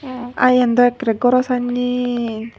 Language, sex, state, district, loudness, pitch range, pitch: Chakma, female, Tripura, Unakoti, -17 LUFS, 245-250 Hz, 245 Hz